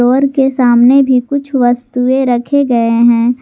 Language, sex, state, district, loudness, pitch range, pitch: Hindi, female, Jharkhand, Garhwa, -11 LUFS, 240-270 Hz, 250 Hz